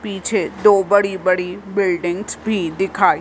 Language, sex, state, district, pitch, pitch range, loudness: Hindi, female, Madhya Pradesh, Bhopal, 195 Hz, 185-205 Hz, -18 LUFS